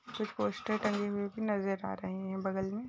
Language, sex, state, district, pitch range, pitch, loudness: Hindi, female, Uttarakhand, Uttarkashi, 190-215 Hz, 200 Hz, -35 LUFS